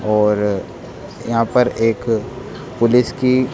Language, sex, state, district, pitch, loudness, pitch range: Hindi, male, Rajasthan, Jaipur, 115 Hz, -17 LUFS, 105-125 Hz